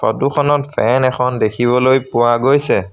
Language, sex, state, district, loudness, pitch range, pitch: Assamese, male, Assam, Sonitpur, -14 LUFS, 120-140 Hz, 130 Hz